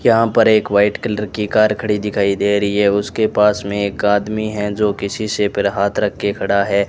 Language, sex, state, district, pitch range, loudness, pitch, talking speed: Hindi, male, Rajasthan, Bikaner, 100-105 Hz, -17 LUFS, 105 Hz, 235 wpm